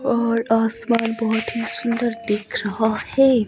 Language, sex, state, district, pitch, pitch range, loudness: Hindi, female, Himachal Pradesh, Shimla, 230 Hz, 225-235 Hz, -21 LUFS